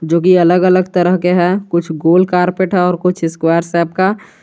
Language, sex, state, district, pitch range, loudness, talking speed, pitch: Hindi, male, Jharkhand, Garhwa, 170-185 Hz, -13 LUFS, 175 wpm, 180 Hz